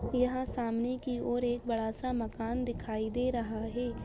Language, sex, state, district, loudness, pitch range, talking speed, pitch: Hindi, female, Bihar, Saharsa, -34 LUFS, 225-250 Hz, 175 wpm, 240 Hz